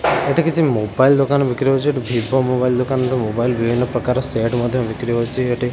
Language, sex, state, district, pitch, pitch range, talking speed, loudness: Odia, male, Odisha, Khordha, 125 Hz, 120-135 Hz, 180 wpm, -18 LUFS